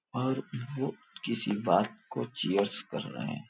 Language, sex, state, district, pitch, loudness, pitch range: Hindi, male, Uttar Pradesh, Gorakhpur, 125 Hz, -32 LUFS, 100-130 Hz